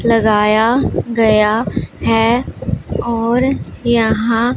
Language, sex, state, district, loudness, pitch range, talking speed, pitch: Hindi, female, Punjab, Pathankot, -15 LUFS, 220-235 Hz, 65 wpm, 230 Hz